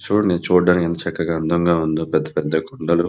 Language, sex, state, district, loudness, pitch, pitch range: Telugu, male, Andhra Pradesh, Visakhapatnam, -19 LUFS, 85 Hz, 80-90 Hz